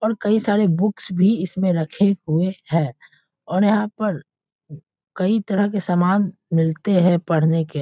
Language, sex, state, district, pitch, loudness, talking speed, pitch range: Hindi, male, Bihar, Muzaffarpur, 185 Hz, -20 LUFS, 155 wpm, 165-205 Hz